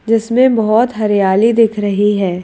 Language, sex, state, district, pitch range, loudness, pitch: Hindi, female, Madhya Pradesh, Bhopal, 205-230 Hz, -13 LUFS, 215 Hz